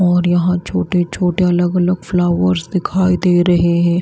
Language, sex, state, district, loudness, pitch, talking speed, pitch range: Hindi, female, Himachal Pradesh, Shimla, -15 LUFS, 175 Hz, 135 wpm, 175-180 Hz